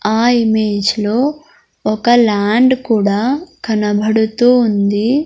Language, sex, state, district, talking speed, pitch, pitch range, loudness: Telugu, female, Andhra Pradesh, Sri Satya Sai, 90 wpm, 220 Hz, 210-250 Hz, -14 LUFS